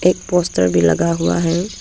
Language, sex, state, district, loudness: Hindi, female, Arunachal Pradesh, Papum Pare, -16 LUFS